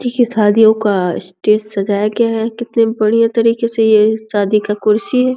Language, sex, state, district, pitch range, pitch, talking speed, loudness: Hindi, female, Uttar Pradesh, Deoria, 210-230 Hz, 220 Hz, 180 wpm, -14 LUFS